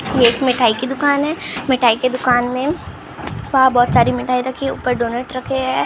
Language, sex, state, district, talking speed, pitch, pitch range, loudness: Hindi, male, Maharashtra, Gondia, 185 wpm, 255 Hz, 245-265 Hz, -16 LUFS